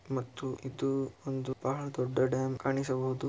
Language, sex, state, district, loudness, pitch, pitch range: Kannada, male, Karnataka, Shimoga, -34 LUFS, 130 Hz, 130-135 Hz